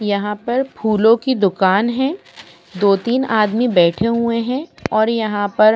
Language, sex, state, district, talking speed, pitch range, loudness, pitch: Hindi, female, Madhya Pradesh, Bhopal, 155 wpm, 205-240 Hz, -17 LUFS, 220 Hz